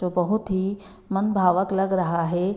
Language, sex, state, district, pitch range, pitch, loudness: Hindi, female, Bihar, Gopalganj, 180-195 Hz, 190 Hz, -23 LUFS